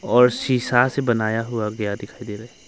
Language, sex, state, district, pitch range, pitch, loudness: Hindi, male, Arunachal Pradesh, Longding, 110-125 Hz, 120 Hz, -21 LUFS